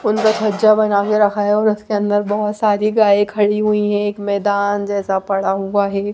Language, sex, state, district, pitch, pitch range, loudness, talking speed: Hindi, female, Bihar, Patna, 205 Hz, 200-210 Hz, -16 LUFS, 195 wpm